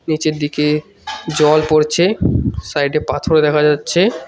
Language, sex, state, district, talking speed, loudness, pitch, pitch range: Bengali, male, West Bengal, Cooch Behar, 125 wpm, -15 LUFS, 155 Hz, 150-160 Hz